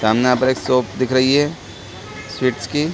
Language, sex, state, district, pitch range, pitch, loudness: Hindi, male, Chhattisgarh, Sarguja, 105-130 Hz, 125 Hz, -18 LUFS